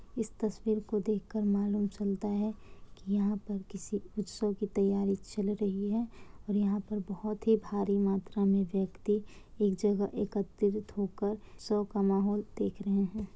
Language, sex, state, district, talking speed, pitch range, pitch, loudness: Hindi, female, Bihar, Kishanganj, 165 wpm, 200-210 Hz, 205 Hz, -33 LUFS